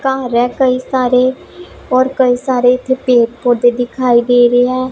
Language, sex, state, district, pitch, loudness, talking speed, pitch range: Punjabi, female, Punjab, Pathankot, 250 Hz, -13 LUFS, 170 wpm, 245-260 Hz